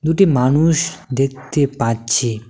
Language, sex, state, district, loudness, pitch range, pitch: Bengali, male, West Bengal, Cooch Behar, -17 LUFS, 120-155 Hz, 135 Hz